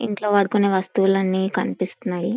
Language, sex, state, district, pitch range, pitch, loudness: Telugu, female, Andhra Pradesh, Visakhapatnam, 190-210 Hz, 195 Hz, -21 LUFS